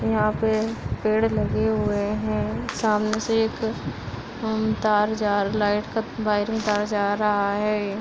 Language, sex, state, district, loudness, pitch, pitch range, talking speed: Hindi, female, Uttar Pradesh, Muzaffarnagar, -24 LUFS, 210 Hz, 200-220 Hz, 140 wpm